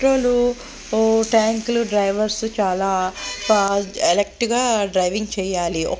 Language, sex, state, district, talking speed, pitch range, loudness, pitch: Telugu, female, Andhra Pradesh, Guntur, 70 wpm, 195-235 Hz, -19 LUFS, 215 Hz